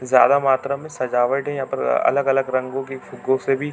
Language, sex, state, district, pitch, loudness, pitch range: Hindi, male, Chhattisgarh, Bilaspur, 135 Hz, -20 LUFS, 130-140 Hz